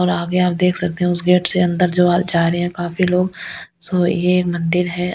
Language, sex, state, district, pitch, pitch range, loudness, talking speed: Hindi, female, Delhi, New Delhi, 180 Hz, 175-180 Hz, -17 LUFS, 220 wpm